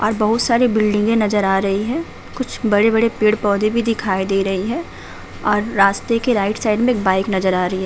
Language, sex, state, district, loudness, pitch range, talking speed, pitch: Hindi, female, Uttar Pradesh, Budaun, -17 LUFS, 195-225 Hz, 245 wpm, 210 Hz